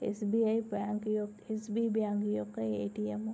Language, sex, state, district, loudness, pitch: Telugu, female, Andhra Pradesh, Srikakulam, -34 LUFS, 210 Hz